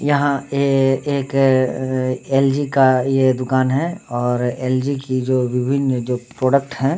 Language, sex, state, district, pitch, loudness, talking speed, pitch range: Hindi, male, Jharkhand, Sahebganj, 130 Hz, -18 LUFS, 120 wpm, 130-140 Hz